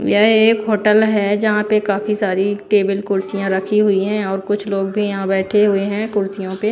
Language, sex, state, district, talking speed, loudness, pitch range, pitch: Hindi, female, Bihar, Patna, 205 wpm, -17 LUFS, 195-210 Hz, 205 Hz